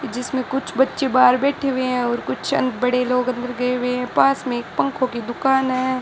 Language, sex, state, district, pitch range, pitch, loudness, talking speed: Hindi, male, Rajasthan, Bikaner, 250-265 Hz, 255 Hz, -20 LUFS, 230 wpm